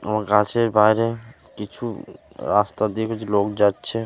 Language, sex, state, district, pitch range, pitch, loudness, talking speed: Bengali, male, West Bengal, Purulia, 105-115 Hz, 105 Hz, -21 LUFS, 150 wpm